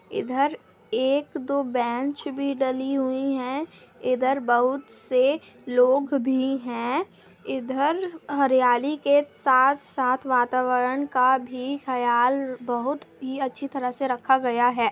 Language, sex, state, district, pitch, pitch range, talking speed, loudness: Hindi, female, Bihar, Madhepura, 265 Hz, 250-280 Hz, 120 wpm, -24 LUFS